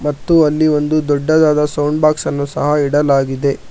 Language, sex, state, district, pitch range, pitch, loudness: Kannada, male, Karnataka, Bangalore, 145-155 Hz, 150 Hz, -14 LUFS